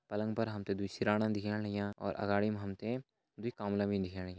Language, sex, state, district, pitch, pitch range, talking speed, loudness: Hindi, male, Uttarakhand, Tehri Garhwal, 105 Hz, 100-110 Hz, 245 wpm, -37 LUFS